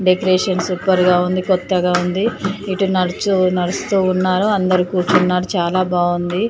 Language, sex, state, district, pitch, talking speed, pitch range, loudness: Telugu, female, Andhra Pradesh, Chittoor, 185 Hz, 130 wpm, 180-190 Hz, -17 LUFS